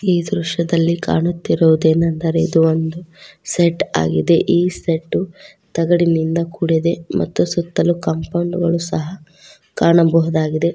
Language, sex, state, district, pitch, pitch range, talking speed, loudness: Kannada, female, Karnataka, Koppal, 170 Hz, 160-175 Hz, 95 wpm, -17 LUFS